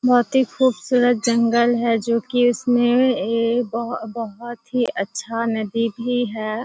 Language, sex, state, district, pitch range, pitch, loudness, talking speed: Hindi, female, Bihar, Kishanganj, 230-245 Hz, 235 Hz, -20 LUFS, 155 wpm